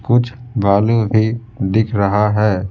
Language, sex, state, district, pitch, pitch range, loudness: Hindi, male, Bihar, Patna, 110 Hz, 100-115 Hz, -16 LUFS